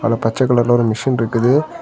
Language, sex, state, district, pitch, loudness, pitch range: Tamil, male, Tamil Nadu, Kanyakumari, 120 Hz, -16 LUFS, 115-130 Hz